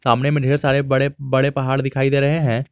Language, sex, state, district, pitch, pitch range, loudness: Hindi, male, Jharkhand, Garhwa, 135 Hz, 135-140 Hz, -18 LUFS